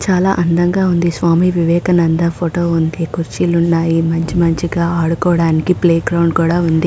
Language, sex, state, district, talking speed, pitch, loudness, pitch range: Telugu, female, Andhra Pradesh, Srikakulam, 140 wpm, 170 Hz, -14 LUFS, 165-175 Hz